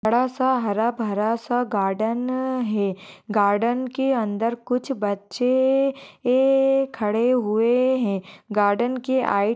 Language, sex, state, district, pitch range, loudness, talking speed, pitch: Hindi, female, Maharashtra, Sindhudurg, 210-255 Hz, -22 LUFS, 125 wpm, 235 Hz